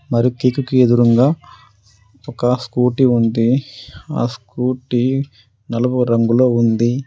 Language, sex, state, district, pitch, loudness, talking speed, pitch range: Telugu, male, Telangana, Adilabad, 125 Hz, -16 LUFS, 95 wpm, 115-130 Hz